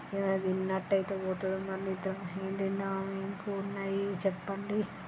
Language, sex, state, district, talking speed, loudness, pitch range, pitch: Telugu, female, Andhra Pradesh, Srikakulam, 95 wpm, -34 LUFS, 190-195 Hz, 195 Hz